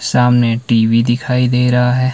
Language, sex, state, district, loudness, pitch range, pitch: Hindi, male, Himachal Pradesh, Shimla, -13 LUFS, 120-125 Hz, 125 Hz